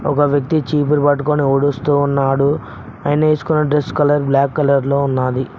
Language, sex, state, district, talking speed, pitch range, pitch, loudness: Telugu, male, Telangana, Mahabubabad, 150 wpm, 140-150 Hz, 145 Hz, -16 LUFS